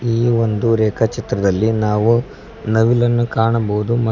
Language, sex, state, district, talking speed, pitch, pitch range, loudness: Kannada, male, Karnataka, Koppal, 100 wpm, 115 Hz, 110-120 Hz, -17 LUFS